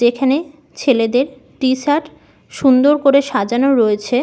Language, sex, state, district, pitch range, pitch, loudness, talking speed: Bengali, female, West Bengal, Malda, 245-285 Hz, 265 Hz, -15 LUFS, 115 wpm